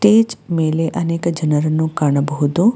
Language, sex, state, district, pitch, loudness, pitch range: Kannada, female, Karnataka, Bangalore, 165 Hz, -17 LUFS, 155-175 Hz